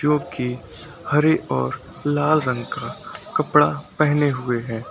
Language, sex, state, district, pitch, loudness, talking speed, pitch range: Hindi, male, Uttar Pradesh, Lucknow, 145 Hz, -21 LUFS, 135 wpm, 120-150 Hz